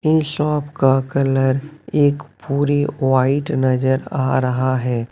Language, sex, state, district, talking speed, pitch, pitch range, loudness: Hindi, male, Bihar, Katihar, 130 wpm, 135 Hz, 130-145 Hz, -18 LUFS